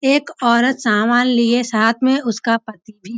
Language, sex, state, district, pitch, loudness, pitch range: Hindi, female, Uttarakhand, Uttarkashi, 235 Hz, -16 LUFS, 220-250 Hz